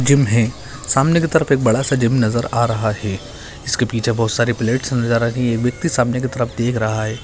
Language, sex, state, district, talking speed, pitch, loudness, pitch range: Hindi, male, Bihar, Purnia, 265 wpm, 120 Hz, -18 LUFS, 115-130 Hz